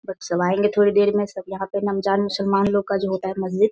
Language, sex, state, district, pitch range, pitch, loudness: Hindi, female, Bihar, Sitamarhi, 190-205 Hz, 195 Hz, -21 LUFS